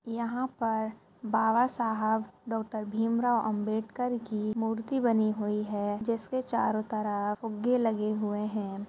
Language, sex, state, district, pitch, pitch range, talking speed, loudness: Hindi, female, Uttar Pradesh, Budaun, 220 Hz, 215-235 Hz, 130 wpm, -30 LUFS